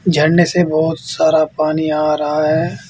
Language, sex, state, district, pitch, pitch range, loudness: Hindi, male, Uttar Pradesh, Saharanpur, 155 Hz, 155-170 Hz, -15 LUFS